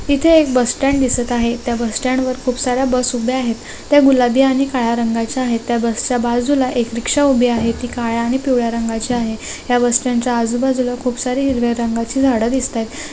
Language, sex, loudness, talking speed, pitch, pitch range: Marathi, female, -16 LUFS, 185 wpm, 245 Hz, 235-260 Hz